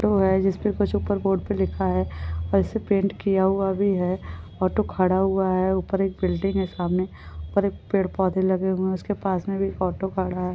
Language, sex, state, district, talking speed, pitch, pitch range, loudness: Hindi, female, Goa, North and South Goa, 195 wpm, 190 Hz, 180-195 Hz, -24 LUFS